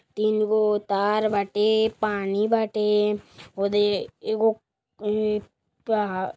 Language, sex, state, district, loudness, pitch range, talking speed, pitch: Hindi, female, Uttar Pradesh, Gorakhpur, -24 LUFS, 205-215 Hz, 105 wpm, 210 Hz